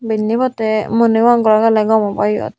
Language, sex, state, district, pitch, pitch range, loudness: Chakma, female, Tripura, Unakoti, 220 Hz, 215-230 Hz, -14 LUFS